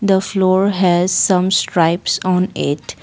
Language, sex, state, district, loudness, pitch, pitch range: English, female, Assam, Kamrup Metropolitan, -15 LUFS, 185 Hz, 180-190 Hz